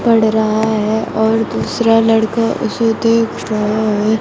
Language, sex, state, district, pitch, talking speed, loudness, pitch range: Hindi, female, Bihar, Kaimur, 220 Hz, 145 wpm, -14 LUFS, 220-225 Hz